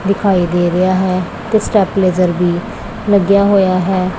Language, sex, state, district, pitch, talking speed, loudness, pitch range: Punjabi, female, Punjab, Pathankot, 185 Hz, 155 wpm, -14 LUFS, 180-200 Hz